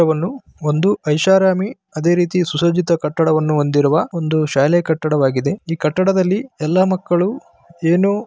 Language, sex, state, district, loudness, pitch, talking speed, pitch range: Kannada, male, Karnataka, Bellary, -17 LUFS, 170 Hz, 115 wpm, 155-185 Hz